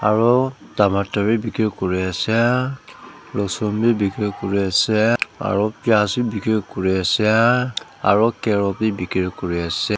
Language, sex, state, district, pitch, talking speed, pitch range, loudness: Nagamese, male, Nagaland, Dimapur, 105 Hz, 140 wpm, 100-115 Hz, -19 LUFS